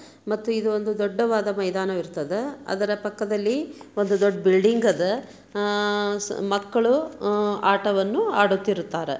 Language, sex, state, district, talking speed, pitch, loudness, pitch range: Kannada, female, Karnataka, Dharwad, 105 wpm, 205 Hz, -23 LUFS, 195-215 Hz